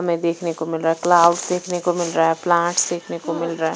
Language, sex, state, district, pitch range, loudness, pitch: Hindi, female, Punjab, Fazilka, 165-175 Hz, -19 LUFS, 170 Hz